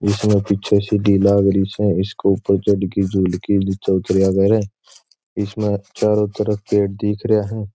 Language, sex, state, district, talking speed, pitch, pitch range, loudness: Marwari, male, Rajasthan, Churu, 110 wpm, 100 Hz, 95-105 Hz, -18 LUFS